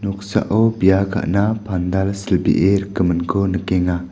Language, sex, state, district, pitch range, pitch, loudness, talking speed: Garo, male, Meghalaya, West Garo Hills, 90-100 Hz, 95 Hz, -18 LUFS, 100 wpm